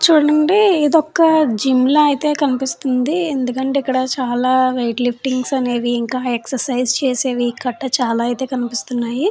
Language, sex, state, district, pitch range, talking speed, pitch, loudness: Telugu, female, Andhra Pradesh, Chittoor, 245-290 Hz, 120 wpm, 260 Hz, -17 LUFS